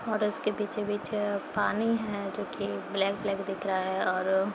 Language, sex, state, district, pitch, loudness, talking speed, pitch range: Hindi, female, Uttar Pradesh, Etah, 200 Hz, -30 LUFS, 200 wpm, 190-210 Hz